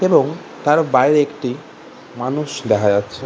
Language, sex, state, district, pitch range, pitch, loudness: Bengali, male, West Bengal, Kolkata, 120-150 Hz, 135 Hz, -17 LUFS